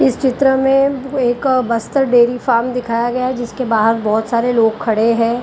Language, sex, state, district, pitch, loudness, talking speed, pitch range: Hindi, female, Maharashtra, Mumbai Suburban, 240 Hz, -15 LUFS, 185 wpm, 230-260 Hz